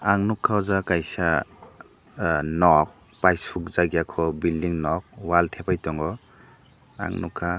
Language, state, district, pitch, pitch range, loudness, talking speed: Kokborok, Tripura, Dhalai, 85 Hz, 80-95 Hz, -24 LUFS, 140 wpm